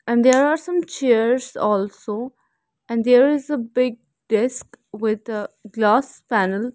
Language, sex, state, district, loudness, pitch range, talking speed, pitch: English, female, Haryana, Rohtak, -20 LUFS, 215-255 Hz, 140 wpm, 235 Hz